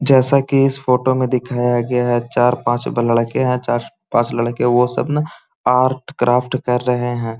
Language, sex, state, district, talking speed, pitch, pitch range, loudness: Magahi, male, Bihar, Gaya, 185 wpm, 125 Hz, 120-130 Hz, -17 LUFS